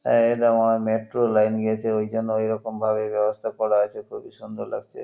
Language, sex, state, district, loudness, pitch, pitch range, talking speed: Bengali, male, West Bengal, North 24 Parganas, -23 LUFS, 110 Hz, 110-115 Hz, 215 wpm